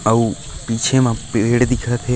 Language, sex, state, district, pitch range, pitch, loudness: Chhattisgarhi, male, Chhattisgarh, Raigarh, 115-125 Hz, 120 Hz, -17 LUFS